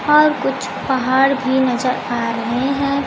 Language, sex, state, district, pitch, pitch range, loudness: Hindi, female, Bihar, Kaimur, 270 Hz, 260-280 Hz, -17 LUFS